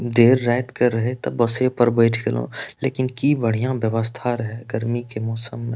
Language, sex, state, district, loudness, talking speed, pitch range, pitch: Maithili, male, Bihar, Madhepura, -21 LUFS, 185 wpm, 115-125 Hz, 120 Hz